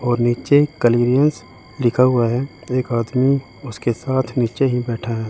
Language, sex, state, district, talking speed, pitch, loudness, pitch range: Hindi, male, Chandigarh, Chandigarh, 160 wpm, 125 Hz, -18 LUFS, 120-130 Hz